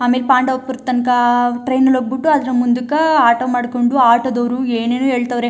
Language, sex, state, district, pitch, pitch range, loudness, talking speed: Kannada, female, Karnataka, Chamarajanagar, 250 Hz, 245-260 Hz, -15 LUFS, 155 wpm